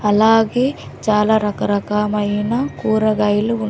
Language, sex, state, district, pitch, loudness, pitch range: Telugu, female, Andhra Pradesh, Sri Satya Sai, 215 Hz, -17 LUFS, 210-225 Hz